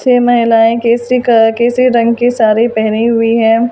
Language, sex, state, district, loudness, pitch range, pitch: Hindi, female, Delhi, New Delhi, -10 LUFS, 225-240 Hz, 235 Hz